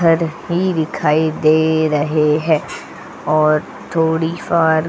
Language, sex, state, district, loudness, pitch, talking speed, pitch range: Hindi, female, Goa, North and South Goa, -16 LUFS, 160 Hz, 110 wpm, 155-165 Hz